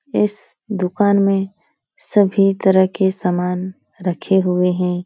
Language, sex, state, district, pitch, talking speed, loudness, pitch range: Hindi, female, Bihar, Supaul, 190 Hz, 120 wpm, -17 LUFS, 180-205 Hz